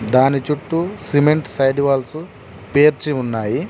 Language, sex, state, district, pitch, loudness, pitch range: Telugu, male, Telangana, Mahabubabad, 140 Hz, -17 LUFS, 130-150 Hz